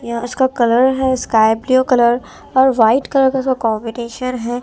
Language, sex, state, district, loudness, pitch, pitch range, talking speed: Hindi, female, Delhi, New Delhi, -15 LUFS, 250 Hz, 235-260 Hz, 170 wpm